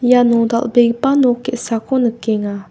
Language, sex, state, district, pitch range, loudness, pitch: Garo, female, Meghalaya, West Garo Hills, 230-250 Hz, -15 LUFS, 240 Hz